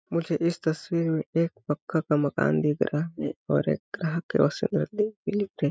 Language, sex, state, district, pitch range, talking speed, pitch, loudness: Hindi, male, Chhattisgarh, Balrampur, 145-170 Hz, 135 wpm, 160 Hz, -27 LUFS